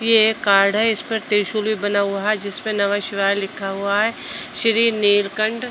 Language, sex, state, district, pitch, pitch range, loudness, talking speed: Hindi, female, Uttar Pradesh, Budaun, 210 Hz, 200-220 Hz, -19 LUFS, 190 wpm